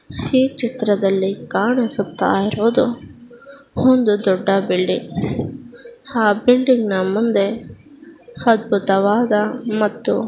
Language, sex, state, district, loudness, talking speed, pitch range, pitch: Kannada, female, Karnataka, Chamarajanagar, -18 LUFS, 75 wpm, 200-250 Hz, 225 Hz